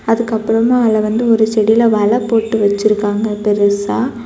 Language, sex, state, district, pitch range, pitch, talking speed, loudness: Tamil, female, Tamil Nadu, Kanyakumari, 210-230 Hz, 220 Hz, 140 wpm, -14 LUFS